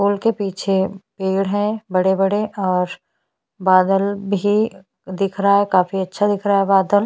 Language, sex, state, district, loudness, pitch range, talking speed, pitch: Hindi, female, Chhattisgarh, Bastar, -18 LUFS, 190-205 Hz, 155 wpm, 195 Hz